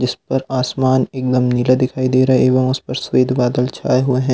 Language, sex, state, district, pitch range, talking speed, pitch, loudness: Hindi, male, Delhi, New Delhi, 125-130 Hz, 220 wpm, 130 Hz, -16 LUFS